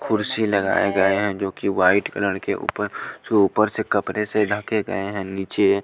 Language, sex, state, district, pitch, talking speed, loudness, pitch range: Hindi, male, Punjab, Pathankot, 100 Hz, 205 wpm, -21 LUFS, 100-105 Hz